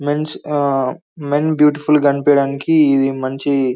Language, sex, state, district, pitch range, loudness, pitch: Telugu, male, Telangana, Karimnagar, 135-150 Hz, -16 LUFS, 145 Hz